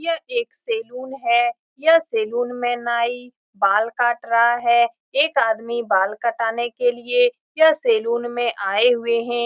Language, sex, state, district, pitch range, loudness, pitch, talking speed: Hindi, female, Bihar, Saran, 235-320 Hz, -20 LUFS, 240 Hz, 150 wpm